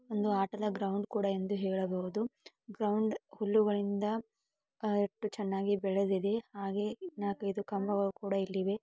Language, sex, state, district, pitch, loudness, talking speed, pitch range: Kannada, female, Karnataka, Belgaum, 205 Hz, -34 LUFS, 100 wpm, 195-215 Hz